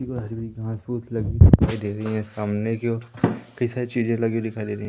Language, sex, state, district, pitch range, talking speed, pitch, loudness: Hindi, male, Madhya Pradesh, Umaria, 110-120 Hz, 235 wpm, 115 Hz, -23 LUFS